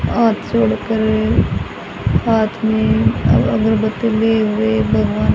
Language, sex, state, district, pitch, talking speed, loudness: Hindi, female, Haryana, Charkhi Dadri, 215 Hz, 90 wpm, -16 LUFS